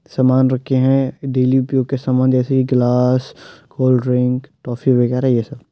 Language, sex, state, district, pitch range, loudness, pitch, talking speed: Hindi, male, Uttar Pradesh, Jyotiba Phule Nagar, 125-130 Hz, -16 LUFS, 130 Hz, 155 wpm